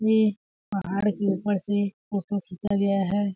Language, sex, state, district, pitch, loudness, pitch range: Hindi, female, Chhattisgarh, Balrampur, 200 Hz, -26 LUFS, 195-205 Hz